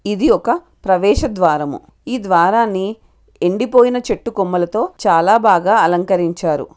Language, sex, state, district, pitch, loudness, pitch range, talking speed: Telugu, female, Telangana, Karimnagar, 195 Hz, -15 LUFS, 175-235 Hz, 105 wpm